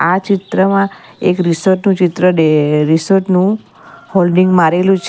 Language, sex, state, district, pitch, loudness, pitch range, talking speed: Gujarati, female, Gujarat, Valsad, 185 Hz, -13 LUFS, 170-195 Hz, 140 wpm